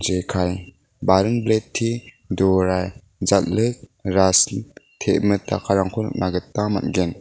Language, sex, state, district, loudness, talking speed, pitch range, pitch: Garo, male, Meghalaya, West Garo Hills, -21 LUFS, 90 wpm, 95-110 Hz, 95 Hz